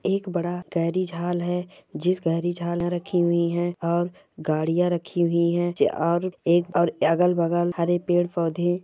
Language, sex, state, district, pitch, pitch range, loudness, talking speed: Hindi, female, Chhattisgarh, Raigarh, 175 Hz, 170-175 Hz, -24 LUFS, 155 wpm